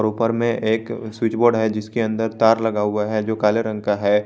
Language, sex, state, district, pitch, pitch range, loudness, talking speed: Hindi, male, Jharkhand, Garhwa, 110 Hz, 105-115 Hz, -20 LUFS, 240 wpm